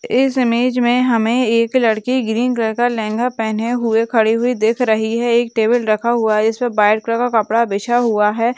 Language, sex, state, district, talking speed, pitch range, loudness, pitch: Hindi, female, West Bengal, Dakshin Dinajpur, 210 wpm, 220-245 Hz, -16 LUFS, 230 Hz